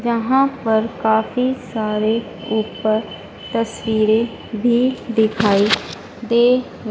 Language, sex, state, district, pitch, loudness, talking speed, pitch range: Hindi, female, Madhya Pradesh, Dhar, 225 Hz, -18 LUFS, 80 wpm, 220-240 Hz